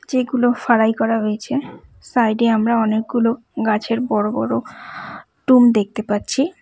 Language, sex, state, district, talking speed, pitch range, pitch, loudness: Bengali, female, West Bengal, Cooch Behar, 125 wpm, 220-245 Hz, 230 Hz, -18 LUFS